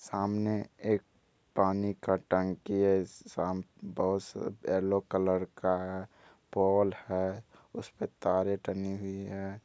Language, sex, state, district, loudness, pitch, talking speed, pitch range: Hindi, male, Bihar, Bhagalpur, -32 LUFS, 95 Hz, 110 wpm, 95-100 Hz